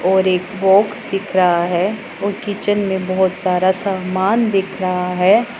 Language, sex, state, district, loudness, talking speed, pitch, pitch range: Hindi, female, Punjab, Pathankot, -17 LUFS, 160 wpm, 190 Hz, 185-200 Hz